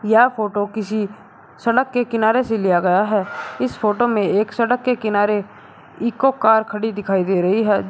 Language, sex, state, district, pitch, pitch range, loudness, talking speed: Hindi, male, Uttar Pradesh, Shamli, 215 Hz, 205-230 Hz, -19 LUFS, 180 wpm